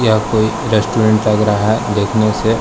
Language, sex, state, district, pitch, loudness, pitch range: Hindi, male, Arunachal Pradesh, Lower Dibang Valley, 110 Hz, -14 LUFS, 105-110 Hz